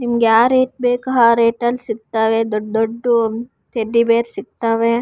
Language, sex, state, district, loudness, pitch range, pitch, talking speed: Kannada, female, Karnataka, Raichur, -16 LUFS, 225-240 Hz, 230 Hz, 155 wpm